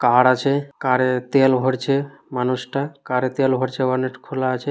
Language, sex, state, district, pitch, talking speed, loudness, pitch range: Bengali, male, West Bengal, Dakshin Dinajpur, 130 Hz, 180 wpm, -20 LUFS, 125-140 Hz